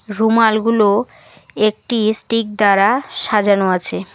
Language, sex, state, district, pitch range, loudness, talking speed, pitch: Bengali, female, West Bengal, Alipurduar, 205-230 Hz, -15 LUFS, 85 wpm, 215 Hz